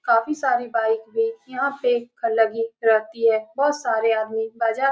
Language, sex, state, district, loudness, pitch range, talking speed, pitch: Hindi, female, Bihar, Saran, -22 LUFS, 225-245 Hz, 170 wpm, 230 Hz